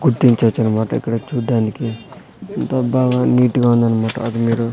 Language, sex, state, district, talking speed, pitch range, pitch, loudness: Telugu, male, Andhra Pradesh, Sri Satya Sai, 140 wpm, 115-125 Hz, 115 Hz, -17 LUFS